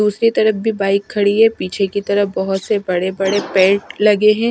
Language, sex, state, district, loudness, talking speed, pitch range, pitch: Hindi, female, Odisha, Nuapada, -16 LUFS, 200 wpm, 195-215 Hz, 200 Hz